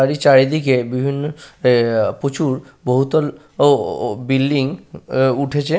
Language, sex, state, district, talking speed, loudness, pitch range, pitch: Bengali, male, West Bengal, Paschim Medinipur, 125 wpm, -17 LUFS, 130-145 Hz, 135 Hz